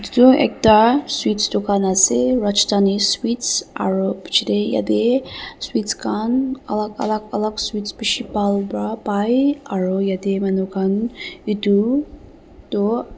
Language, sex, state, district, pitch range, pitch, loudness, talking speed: Nagamese, female, Nagaland, Dimapur, 195-235 Hz, 210 Hz, -18 LUFS, 120 wpm